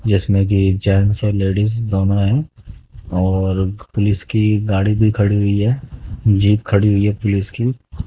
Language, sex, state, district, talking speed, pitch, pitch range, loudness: Hindi, male, Haryana, Jhajjar, 155 wpm, 100 Hz, 95-105 Hz, -16 LUFS